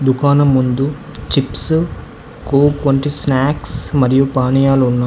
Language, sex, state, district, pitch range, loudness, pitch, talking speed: Telugu, male, Telangana, Hyderabad, 130-145 Hz, -15 LUFS, 135 Hz, 105 wpm